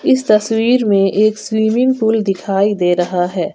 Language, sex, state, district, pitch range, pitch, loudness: Hindi, female, Jharkhand, Garhwa, 195-225 Hz, 215 Hz, -14 LUFS